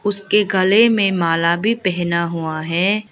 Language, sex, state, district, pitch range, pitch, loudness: Hindi, female, Arunachal Pradesh, Lower Dibang Valley, 170-210 Hz, 190 Hz, -17 LUFS